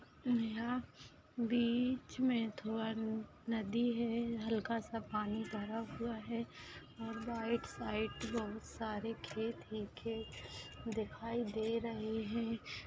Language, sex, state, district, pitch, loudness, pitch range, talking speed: Hindi, female, Maharashtra, Pune, 225 Hz, -40 LUFS, 220-235 Hz, 110 wpm